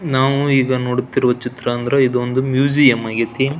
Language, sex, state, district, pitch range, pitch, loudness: Kannada, male, Karnataka, Belgaum, 125-135 Hz, 130 Hz, -17 LUFS